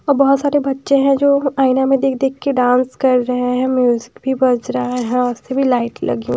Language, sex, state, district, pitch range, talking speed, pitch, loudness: Hindi, female, Bihar, Patna, 250-275 Hz, 215 wpm, 260 Hz, -16 LUFS